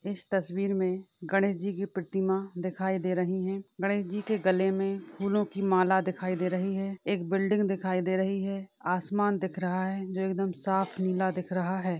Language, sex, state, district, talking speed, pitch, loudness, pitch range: Hindi, female, Rajasthan, Churu, 200 wpm, 190 Hz, -30 LUFS, 185-195 Hz